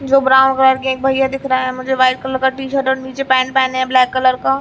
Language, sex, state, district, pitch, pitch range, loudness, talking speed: Hindi, female, Chhattisgarh, Bilaspur, 265 Hz, 260-270 Hz, -15 LUFS, 310 wpm